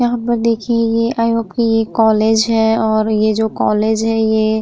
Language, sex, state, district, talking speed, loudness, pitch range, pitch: Hindi, female, Uttar Pradesh, Muzaffarnagar, 170 wpm, -15 LUFS, 220-230 Hz, 225 Hz